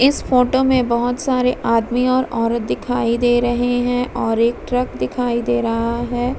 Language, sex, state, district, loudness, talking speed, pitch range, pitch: Hindi, female, Bihar, Vaishali, -18 LUFS, 180 wpm, 235-250 Hz, 245 Hz